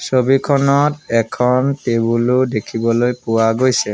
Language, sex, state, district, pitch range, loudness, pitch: Assamese, male, Assam, Sonitpur, 115-135 Hz, -16 LUFS, 125 Hz